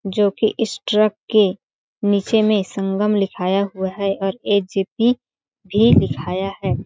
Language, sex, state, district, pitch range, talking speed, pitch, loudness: Hindi, female, Chhattisgarh, Balrampur, 190-215 Hz, 140 wpm, 200 Hz, -19 LUFS